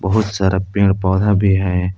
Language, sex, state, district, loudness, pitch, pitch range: Hindi, male, Jharkhand, Palamu, -16 LUFS, 95 Hz, 95-100 Hz